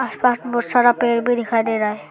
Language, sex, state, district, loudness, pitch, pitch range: Hindi, male, Arunachal Pradesh, Lower Dibang Valley, -18 LUFS, 240 Hz, 225-245 Hz